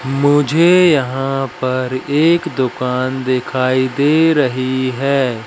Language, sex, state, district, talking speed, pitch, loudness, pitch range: Hindi, male, Madhya Pradesh, Katni, 100 wpm, 135 Hz, -15 LUFS, 130-145 Hz